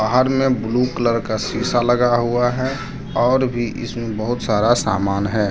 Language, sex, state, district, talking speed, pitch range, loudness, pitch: Hindi, male, Jharkhand, Deoghar, 175 wpm, 110-125 Hz, -19 LUFS, 120 Hz